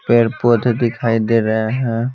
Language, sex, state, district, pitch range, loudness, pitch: Hindi, male, Bihar, Patna, 115-120 Hz, -16 LUFS, 115 Hz